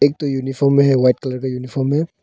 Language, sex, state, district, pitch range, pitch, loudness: Hindi, male, Arunachal Pradesh, Longding, 130-140 Hz, 135 Hz, -17 LUFS